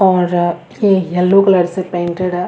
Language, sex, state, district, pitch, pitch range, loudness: Hindi, female, Bihar, Samastipur, 180 Hz, 175-190 Hz, -14 LUFS